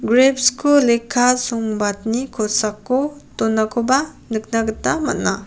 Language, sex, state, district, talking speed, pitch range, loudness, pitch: Garo, female, Meghalaya, West Garo Hills, 100 wpm, 220-260 Hz, -18 LUFS, 235 Hz